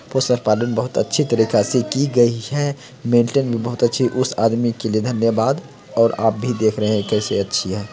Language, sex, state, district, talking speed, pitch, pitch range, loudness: Hindi, male, Bihar, Samastipur, 190 wpm, 120 Hz, 110-125 Hz, -19 LUFS